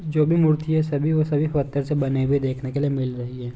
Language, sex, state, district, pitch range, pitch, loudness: Hindi, male, Chhattisgarh, Bilaspur, 135-155 Hz, 145 Hz, -22 LUFS